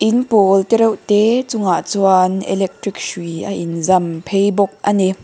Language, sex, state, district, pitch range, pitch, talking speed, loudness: Mizo, female, Mizoram, Aizawl, 185-210 Hz, 195 Hz, 185 wpm, -16 LUFS